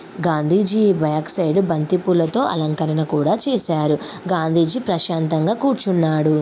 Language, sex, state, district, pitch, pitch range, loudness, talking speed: Telugu, female, Andhra Pradesh, Srikakulam, 170 Hz, 155-190 Hz, -19 LUFS, 105 wpm